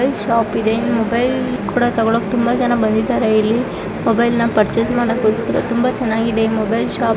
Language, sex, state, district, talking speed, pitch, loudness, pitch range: Kannada, female, Karnataka, Chamarajanagar, 135 wpm, 230 Hz, -17 LUFS, 220-240 Hz